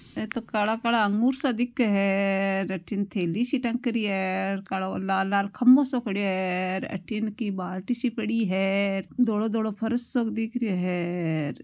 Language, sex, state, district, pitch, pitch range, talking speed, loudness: Marwari, female, Rajasthan, Nagaur, 205 Hz, 190-235 Hz, 195 wpm, -26 LUFS